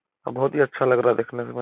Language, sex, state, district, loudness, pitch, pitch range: Hindi, male, Uttar Pradesh, Etah, -22 LUFS, 125 Hz, 120-135 Hz